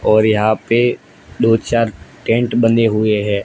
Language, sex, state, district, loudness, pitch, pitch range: Hindi, male, Gujarat, Gandhinagar, -15 LUFS, 115 Hz, 110-115 Hz